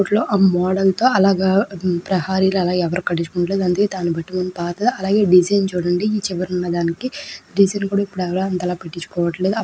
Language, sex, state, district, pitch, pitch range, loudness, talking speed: Telugu, female, Andhra Pradesh, Krishna, 185 Hz, 180-195 Hz, -19 LUFS, 50 wpm